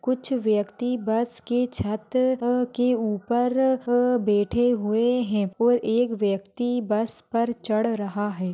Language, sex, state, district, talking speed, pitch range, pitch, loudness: Hindi, female, Bihar, Gaya, 140 wpm, 215-245 Hz, 235 Hz, -24 LUFS